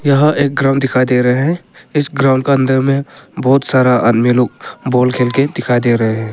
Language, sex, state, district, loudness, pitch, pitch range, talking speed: Hindi, male, Arunachal Pradesh, Papum Pare, -13 LUFS, 130 Hz, 125-140 Hz, 135 wpm